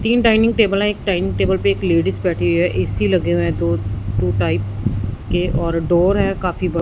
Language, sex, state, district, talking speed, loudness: Hindi, male, Punjab, Fazilka, 230 wpm, -18 LUFS